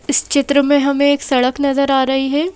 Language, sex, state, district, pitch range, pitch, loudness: Hindi, female, Madhya Pradesh, Bhopal, 270-285 Hz, 280 Hz, -15 LUFS